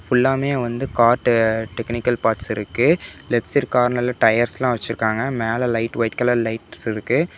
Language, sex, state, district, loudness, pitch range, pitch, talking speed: Tamil, male, Tamil Nadu, Namakkal, -20 LUFS, 115-125 Hz, 120 Hz, 140 wpm